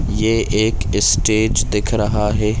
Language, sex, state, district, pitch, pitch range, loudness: Hindi, male, Chhattisgarh, Raigarh, 105 Hz, 105-110 Hz, -17 LUFS